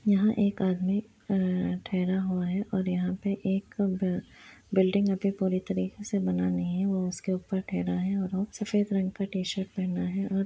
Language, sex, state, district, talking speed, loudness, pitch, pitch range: Hindi, female, Bihar, Muzaffarpur, 190 wpm, -29 LUFS, 190 Hz, 185-200 Hz